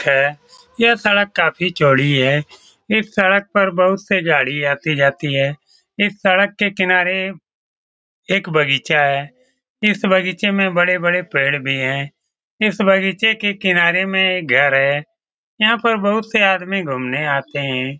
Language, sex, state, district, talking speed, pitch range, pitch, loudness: Hindi, male, Bihar, Saran, 150 wpm, 145-205 Hz, 185 Hz, -16 LUFS